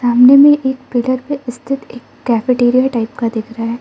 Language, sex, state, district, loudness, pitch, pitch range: Hindi, female, Arunachal Pradesh, Lower Dibang Valley, -14 LUFS, 245 Hz, 235-265 Hz